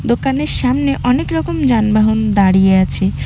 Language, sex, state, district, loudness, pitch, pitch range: Bengali, female, West Bengal, Cooch Behar, -14 LUFS, 220 Hz, 195-260 Hz